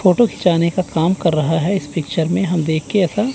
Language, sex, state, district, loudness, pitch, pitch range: Hindi, male, Chandigarh, Chandigarh, -17 LUFS, 175 Hz, 160-190 Hz